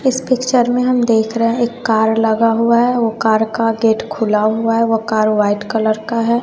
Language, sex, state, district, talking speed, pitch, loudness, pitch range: Hindi, female, Bihar, West Champaran, 235 wpm, 225 Hz, -15 LUFS, 220-235 Hz